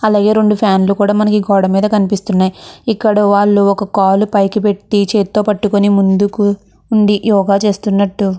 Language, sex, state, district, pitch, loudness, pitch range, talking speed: Telugu, female, Andhra Pradesh, Chittoor, 205 Hz, -13 LUFS, 200-210 Hz, 155 wpm